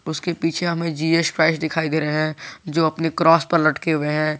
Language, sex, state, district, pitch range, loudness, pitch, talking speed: Hindi, male, Jharkhand, Garhwa, 155-165 Hz, -20 LUFS, 160 Hz, 220 wpm